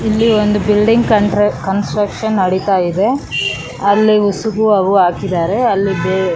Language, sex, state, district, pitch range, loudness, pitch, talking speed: Kannada, female, Karnataka, Raichur, 185-210 Hz, -14 LUFS, 200 Hz, 115 wpm